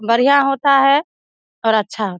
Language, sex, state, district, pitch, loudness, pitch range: Hindi, female, Bihar, Kishanganj, 265 Hz, -15 LUFS, 220-280 Hz